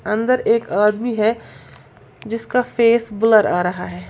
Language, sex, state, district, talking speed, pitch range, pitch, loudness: Hindi, female, Uttar Pradesh, Lalitpur, 145 wpm, 210-230 Hz, 225 Hz, -18 LUFS